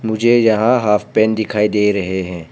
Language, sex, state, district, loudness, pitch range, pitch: Hindi, male, Arunachal Pradesh, Papum Pare, -15 LUFS, 105-110 Hz, 105 Hz